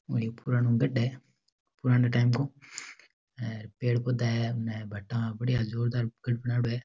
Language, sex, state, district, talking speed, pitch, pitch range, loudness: Rajasthani, male, Rajasthan, Churu, 130 wpm, 120 Hz, 115-125 Hz, -29 LUFS